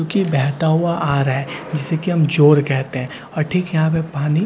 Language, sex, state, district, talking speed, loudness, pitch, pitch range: Hindi, male, Bihar, Katihar, 240 wpm, -18 LUFS, 155 Hz, 140-165 Hz